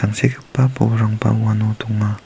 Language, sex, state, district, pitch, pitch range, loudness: Garo, male, Meghalaya, South Garo Hills, 110 Hz, 110-125 Hz, -18 LUFS